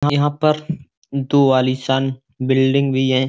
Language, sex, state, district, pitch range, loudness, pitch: Hindi, male, Uttar Pradesh, Budaun, 130-145 Hz, -18 LUFS, 135 Hz